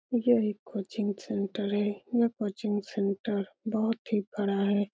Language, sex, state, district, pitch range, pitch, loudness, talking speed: Hindi, female, Bihar, Lakhisarai, 200-225 Hz, 205 Hz, -30 LUFS, 145 wpm